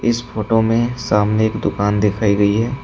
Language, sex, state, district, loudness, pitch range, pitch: Hindi, male, Uttar Pradesh, Shamli, -17 LUFS, 105-115 Hz, 110 Hz